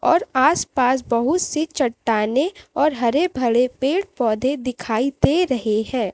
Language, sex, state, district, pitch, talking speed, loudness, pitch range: Hindi, female, Chhattisgarh, Raipur, 255 Hz, 145 wpm, -20 LUFS, 235-295 Hz